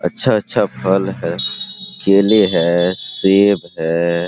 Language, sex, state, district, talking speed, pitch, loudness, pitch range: Hindi, male, Bihar, Araria, 100 wpm, 95 Hz, -16 LUFS, 85-100 Hz